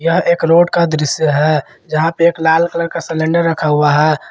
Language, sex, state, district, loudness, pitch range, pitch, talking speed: Hindi, male, Jharkhand, Garhwa, -14 LUFS, 155-170 Hz, 165 Hz, 225 wpm